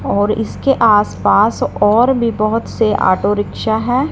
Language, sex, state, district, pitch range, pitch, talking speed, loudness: Hindi, female, Punjab, Fazilka, 205-235 Hz, 220 Hz, 145 wpm, -14 LUFS